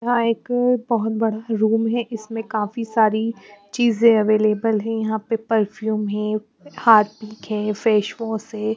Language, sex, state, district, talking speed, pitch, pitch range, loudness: Hindi, female, Bihar, West Champaran, 145 wpm, 220 Hz, 215-230 Hz, -20 LUFS